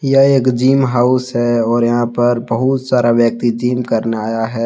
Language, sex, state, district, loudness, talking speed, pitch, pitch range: Hindi, male, Jharkhand, Deoghar, -14 LUFS, 195 wpm, 120 Hz, 115-130 Hz